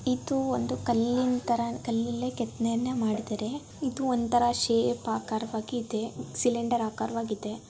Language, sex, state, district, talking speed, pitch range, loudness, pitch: Kannada, female, Karnataka, Dakshina Kannada, 110 wpm, 220-245 Hz, -29 LUFS, 235 Hz